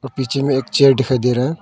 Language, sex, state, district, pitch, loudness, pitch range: Hindi, male, Arunachal Pradesh, Longding, 135 Hz, -16 LUFS, 130-135 Hz